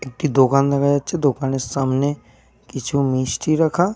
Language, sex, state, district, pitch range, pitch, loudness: Bengali, male, Jharkhand, Jamtara, 130-145 Hz, 140 Hz, -19 LUFS